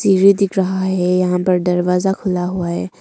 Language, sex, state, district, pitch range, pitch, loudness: Hindi, female, Arunachal Pradesh, Longding, 180-190 Hz, 185 Hz, -16 LUFS